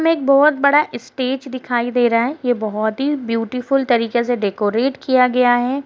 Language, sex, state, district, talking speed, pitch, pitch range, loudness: Hindi, female, Uttar Pradesh, Deoria, 195 wpm, 250 Hz, 235-270 Hz, -17 LUFS